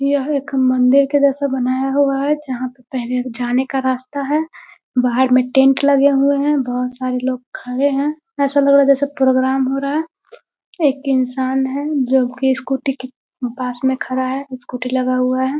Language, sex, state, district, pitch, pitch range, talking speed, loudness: Hindi, female, Bihar, Muzaffarpur, 265 Hz, 255-280 Hz, 190 wpm, -17 LUFS